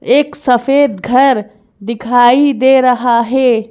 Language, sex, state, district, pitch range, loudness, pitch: Hindi, female, Madhya Pradesh, Bhopal, 235-265 Hz, -11 LUFS, 250 Hz